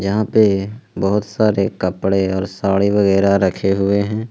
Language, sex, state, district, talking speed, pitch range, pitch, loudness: Hindi, male, Jharkhand, Ranchi, 155 wpm, 95-105 Hz, 100 Hz, -17 LUFS